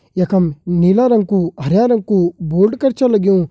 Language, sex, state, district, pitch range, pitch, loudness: Garhwali, male, Uttarakhand, Uttarkashi, 175-225 Hz, 190 Hz, -15 LUFS